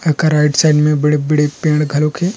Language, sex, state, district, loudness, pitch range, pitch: Chhattisgarhi, male, Chhattisgarh, Rajnandgaon, -14 LUFS, 150-155 Hz, 150 Hz